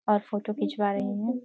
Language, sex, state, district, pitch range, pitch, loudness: Hindi, female, Uttarakhand, Uttarkashi, 205-215 Hz, 210 Hz, -29 LUFS